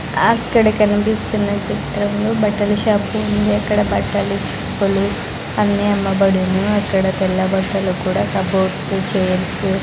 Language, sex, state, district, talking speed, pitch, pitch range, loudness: Telugu, female, Andhra Pradesh, Sri Satya Sai, 110 wpm, 200 Hz, 190-210 Hz, -17 LUFS